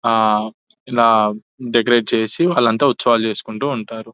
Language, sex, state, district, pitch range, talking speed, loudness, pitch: Telugu, male, Telangana, Nalgonda, 110-120 Hz, 130 wpm, -17 LUFS, 115 Hz